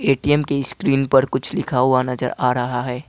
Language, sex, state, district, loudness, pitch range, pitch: Hindi, male, Assam, Kamrup Metropolitan, -19 LUFS, 125-140 Hz, 130 Hz